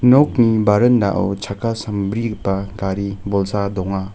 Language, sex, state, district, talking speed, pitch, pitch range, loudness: Garo, male, Meghalaya, North Garo Hills, 100 wpm, 100 Hz, 100-115 Hz, -18 LUFS